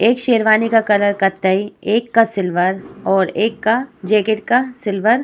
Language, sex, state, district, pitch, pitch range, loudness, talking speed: Hindi, female, Uttar Pradesh, Muzaffarnagar, 215 Hz, 195-230 Hz, -16 LUFS, 185 wpm